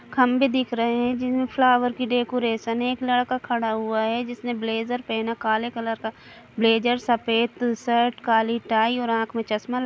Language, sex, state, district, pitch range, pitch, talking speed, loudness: Hindi, female, Chhattisgarh, Kabirdham, 225-245 Hz, 235 Hz, 185 wpm, -23 LUFS